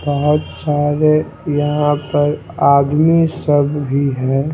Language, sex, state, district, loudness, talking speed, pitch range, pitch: Hindi, male, Himachal Pradesh, Shimla, -15 LUFS, 105 wpm, 145-150 Hz, 145 Hz